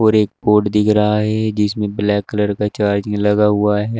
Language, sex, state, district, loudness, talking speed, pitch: Hindi, male, Uttar Pradesh, Shamli, -16 LUFS, 225 wpm, 105 Hz